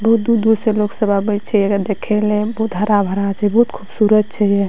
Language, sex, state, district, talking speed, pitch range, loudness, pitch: Maithili, female, Bihar, Madhepura, 220 wpm, 205-220 Hz, -16 LUFS, 210 Hz